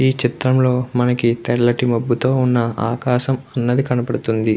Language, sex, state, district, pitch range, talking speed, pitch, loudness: Telugu, male, Andhra Pradesh, Krishna, 120-130 Hz, 120 wpm, 125 Hz, -18 LUFS